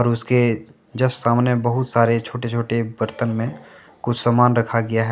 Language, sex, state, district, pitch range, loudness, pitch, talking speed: Hindi, male, Jharkhand, Deoghar, 115-120 Hz, -20 LUFS, 120 Hz, 165 wpm